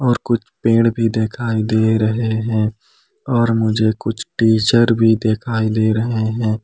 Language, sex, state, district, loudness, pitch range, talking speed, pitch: Hindi, male, Jharkhand, Palamu, -17 LUFS, 110-115 Hz, 155 wpm, 110 Hz